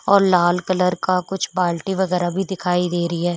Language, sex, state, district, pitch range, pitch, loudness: Hindi, female, Uttar Pradesh, Shamli, 175-190 Hz, 180 Hz, -20 LUFS